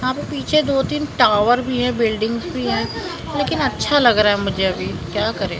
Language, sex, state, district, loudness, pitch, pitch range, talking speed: Hindi, male, Maharashtra, Mumbai Suburban, -18 LUFS, 240 Hz, 210-270 Hz, 215 wpm